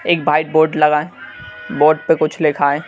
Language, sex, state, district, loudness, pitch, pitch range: Hindi, male, Madhya Pradesh, Bhopal, -15 LUFS, 150 Hz, 145-155 Hz